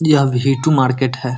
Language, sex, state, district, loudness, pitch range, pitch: Hindi, male, Bihar, Muzaffarpur, -15 LUFS, 130-145 Hz, 135 Hz